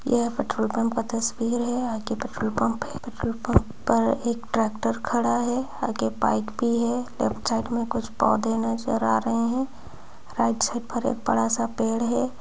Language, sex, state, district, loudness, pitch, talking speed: Hindi, male, Bihar, Purnia, -25 LUFS, 230 Hz, 185 wpm